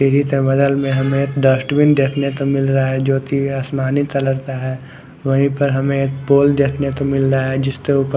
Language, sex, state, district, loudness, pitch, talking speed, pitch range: Hindi, male, Odisha, Khordha, -17 LUFS, 135 Hz, 200 wpm, 135-140 Hz